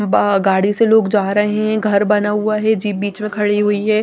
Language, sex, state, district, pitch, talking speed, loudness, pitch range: Hindi, female, Odisha, Nuapada, 210 Hz, 255 wpm, -16 LUFS, 205-215 Hz